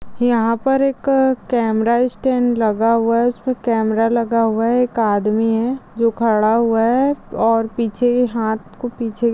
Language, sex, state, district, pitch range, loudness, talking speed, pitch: Hindi, female, Maharashtra, Sindhudurg, 225-245 Hz, -17 LUFS, 155 wpm, 230 Hz